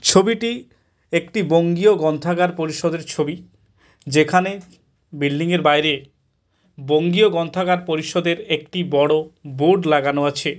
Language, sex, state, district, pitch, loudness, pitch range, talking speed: Bengali, male, West Bengal, Kolkata, 160 Hz, -19 LUFS, 150-180 Hz, 100 wpm